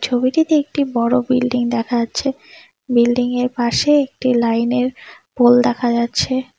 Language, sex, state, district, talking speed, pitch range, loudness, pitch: Bengali, female, West Bengal, Malda, 135 wpm, 240-260 Hz, -17 LUFS, 250 Hz